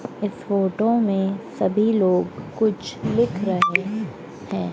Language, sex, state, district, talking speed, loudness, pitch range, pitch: Hindi, female, Madhya Pradesh, Dhar, 115 wpm, -22 LUFS, 190-220 Hz, 200 Hz